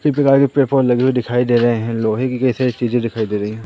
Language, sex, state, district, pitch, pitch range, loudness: Hindi, male, Madhya Pradesh, Katni, 125 Hz, 115-130 Hz, -16 LUFS